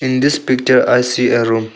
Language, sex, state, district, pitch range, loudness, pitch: English, male, Arunachal Pradesh, Longding, 120-130 Hz, -14 LUFS, 125 Hz